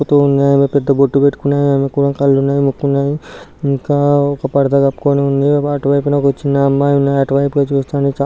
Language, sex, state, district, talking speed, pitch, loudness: Telugu, male, Telangana, Karimnagar, 140 wpm, 140 Hz, -14 LUFS